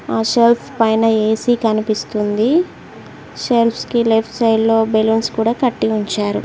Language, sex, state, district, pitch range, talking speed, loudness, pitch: Telugu, female, Telangana, Mahabubabad, 220-235 Hz, 130 wpm, -16 LUFS, 225 Hz